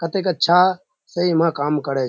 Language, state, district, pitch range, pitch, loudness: Surjapuri, Bihar, Kishanganj, 150-185 Hz, 170 Hz, -18 LUFS